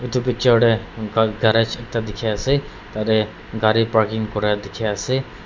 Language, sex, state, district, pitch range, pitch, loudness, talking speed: Nagamese, male, Nagaland, Dimapur, 105-115 Hz, 110 Hz, -20 LUFS, 165 wpm